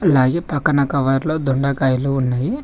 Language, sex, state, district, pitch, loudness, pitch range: Telugu, male, Telangana, Mahabubabad, 140 Hz, -18 LUFS, 135-155 Hz